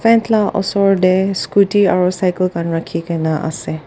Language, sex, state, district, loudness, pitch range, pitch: Nagamese, female, Nagaland, Dimapur, -15 LUFS, 165-200 Hz, 185 Hz